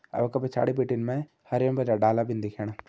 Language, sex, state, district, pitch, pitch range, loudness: Hindi, male, Uttarakhand, Tehri Garhwal, 120 Hz, 110-130 Hz, -27 LUFS